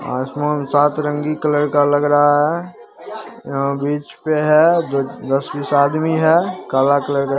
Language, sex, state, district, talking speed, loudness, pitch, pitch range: Maithili, male, Bihar, Begusarai, 160 wpm, -17 LUFS, 145 Hz, 140-155 Hz